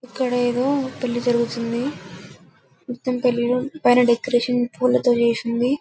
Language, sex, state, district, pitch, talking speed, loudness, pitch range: Telugu, female, Telangana, Karimnagar, 245 Hz, 105 wpm, -21 LUFS, 235-250 Hz